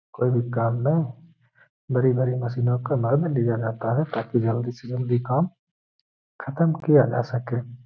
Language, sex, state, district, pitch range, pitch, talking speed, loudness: Hindi, male, Bihar, Gaya, 120-145 Hz, 125 Hz, 155 wpm, -24 LUFS